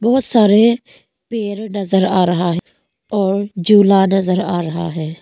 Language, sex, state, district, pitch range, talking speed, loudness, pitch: Hindi, female, Arunachal Pradesh, Longding, 180-210 Hz, 140 wpm, -15 LUFS, 195 Hz